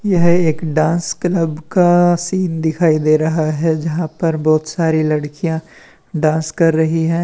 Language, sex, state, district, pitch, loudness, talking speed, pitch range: Hindi, male, Uttar Pradesh, Lalitpur, 160 Hz, -16 LUFS, 160 wpm, 155-170 Hz